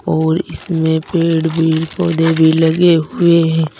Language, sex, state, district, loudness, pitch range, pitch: Hindi, male, Uttar Pradesh, Saharanpur, -14 LUFS, 160-170 Hz, 165 Hz